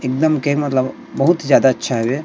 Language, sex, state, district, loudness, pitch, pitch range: Chhattisgarhi, male, Chhattisgarh, Rajnandgaon, -17 LUFS, 135 Hz, 130-150 Hz